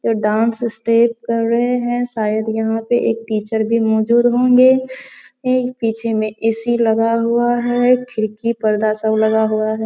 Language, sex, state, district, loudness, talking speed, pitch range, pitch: Hindi, female, Bihar, Araria, -16 LUFS, 160 wpm, 220-240 Hz, 230 Hz